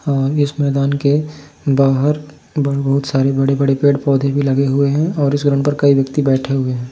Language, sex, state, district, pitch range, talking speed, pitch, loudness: Hindi, male, Uttar Pradesh, Jyotiba Phule Nagar, 135-145 Hz, 225 wpm, 140 Hz, -16 LUFS